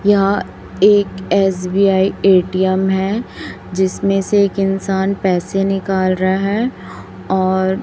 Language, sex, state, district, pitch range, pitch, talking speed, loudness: Hindi, female, Chhattisgarh, Raipur, 190-195 Hz, 195 Hz, 105 wpm, -16 LUFS